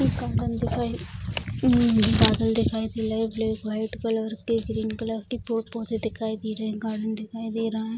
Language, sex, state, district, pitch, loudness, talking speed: Hindi, female, Bihar, Bhagalpur, 220 Hz, -26 LUFS, 205 wpm